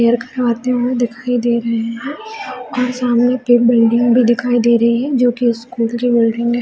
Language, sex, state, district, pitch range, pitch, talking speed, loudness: Hindi, female, Bihar, Jamui, 235-250 Hz, 240 Hz, 200 wpm, -15 LUFS